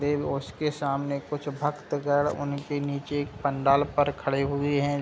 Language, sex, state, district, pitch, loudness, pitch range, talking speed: Hindi, male, Bihar, Gopalganj, 145 Hz, -28 LUFS, 140-145 Hz, 155 wpm